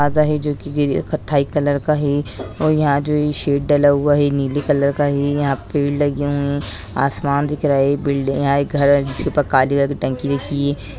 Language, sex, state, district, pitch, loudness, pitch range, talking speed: Hindi, female, Rajasthan, Nagaur, 145 Hz, -17 LUFS, 140-145 Hz, 240 wpm